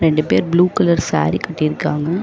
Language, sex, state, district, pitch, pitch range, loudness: Tamil, female, Tamil Nadu, Chennai, 165 Hz, 155-175 Hz, -17 LUFS